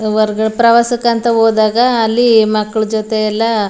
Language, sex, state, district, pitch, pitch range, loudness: Kannada, female, Karnataka, Mysore, 220 Hz, 215-235 Hz, -12 LUFS